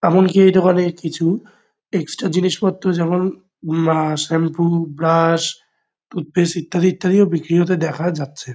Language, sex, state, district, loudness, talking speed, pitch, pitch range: Bengali, male, West Bengal, Kolkata, -17 LUFS, 125 wpm, 170 Hz, 165-185 Hz